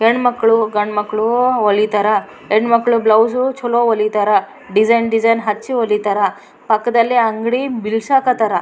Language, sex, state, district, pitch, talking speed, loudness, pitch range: Kannada, female, Karnataka, Raichur, 225 Hz, 110 wpm, -15 LUFS, 215-240 Hz